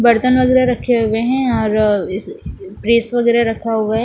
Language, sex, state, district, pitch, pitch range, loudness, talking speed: Hindi, female, Bihar, West Champaran, 235 Hz, 220-245 Hz, -15 LUFS, 180 wpm